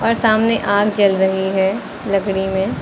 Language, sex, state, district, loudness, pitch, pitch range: Hindi, female, Uttar Pradesh, Lucknow, -17 LUFS, 200 Hz, 190-215 Hz